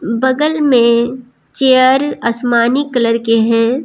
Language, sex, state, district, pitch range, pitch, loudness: Hindi, female, Jharkhand, Deoghar, 235-260 Hz, 245 Hz, -13 LUFS